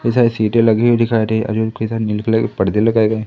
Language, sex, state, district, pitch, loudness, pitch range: Hindi, male, Madhya Pradesh, Katni, 110 Hz, -16 LUFS, 110-115 Hz